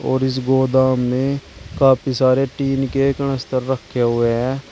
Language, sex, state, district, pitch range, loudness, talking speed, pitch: Hindi, male, Uttar Pradesh, Shamli, 130-135 Hz, -18 LUFS, 150 wpm, 130 Hz